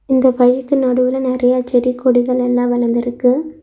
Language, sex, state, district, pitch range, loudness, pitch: Tamil, female, Tamil Nadu, Nilgiris, 245-260 Hz, -15 LUFS, 250 Hz